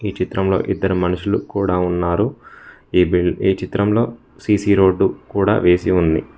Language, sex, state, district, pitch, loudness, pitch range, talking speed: Telugu, male, Telangana, Mahabubabad, 95 Hz, -18 LUFS, 90-100 Hz, 120 wpm